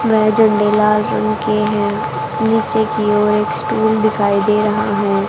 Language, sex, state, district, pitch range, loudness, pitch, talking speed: Hindi, female, Haryana, Charkhi Dadri, 210-220 Hz, -15 LUFS, 215 Hz, 170 wpm